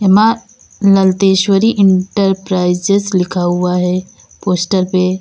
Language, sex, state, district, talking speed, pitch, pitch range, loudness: Hindi, female, Uttar Pradesh, Lalitpur, 90 wpm, 190 Hz, 185-195 Hz, -13 LUFS